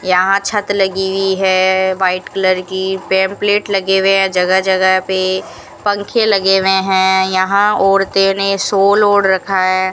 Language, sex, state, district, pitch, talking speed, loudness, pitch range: Hindi, female, Rajasthan, Bikaner, 190 Hz, 150 wpm, -13 LUFS, 190-195 Hz